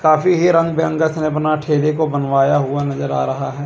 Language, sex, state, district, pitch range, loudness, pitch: Hindi, male, Chandigarh, Chandigarh, 140-160 Hz, -17 LUFS, 155 Hz